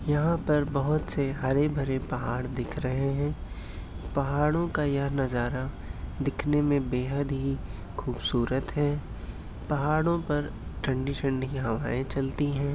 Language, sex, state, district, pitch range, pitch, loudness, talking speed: Hindi, male, Uttar Pradesh, Hamirpur, 130-145 Hz, 140 Hz, -29 LUFS, 125 wpm